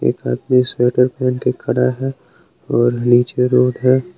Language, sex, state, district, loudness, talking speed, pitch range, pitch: Hindi, male, Jharkhand, Palamu, -16 LUFS, 160 wpm, 120-130 Hz, 125 Hz